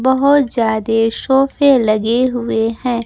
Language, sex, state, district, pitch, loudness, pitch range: Hindi, female, Bihar, Kaimur, 240 Hz, -14 LUFS, 225-265 Hz